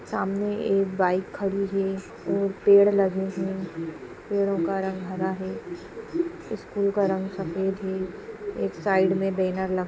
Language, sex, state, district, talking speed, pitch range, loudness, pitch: Hindi, female, Bihar, Sitamarhi, 150 wpm, 190-200 Hz, -26 LUFS, 195 Hz